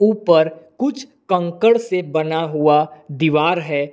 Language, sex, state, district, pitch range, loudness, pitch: Hindi, male, Jharkhand, Palamu, 155-195 Hz, -18 LUFS, 165 Hz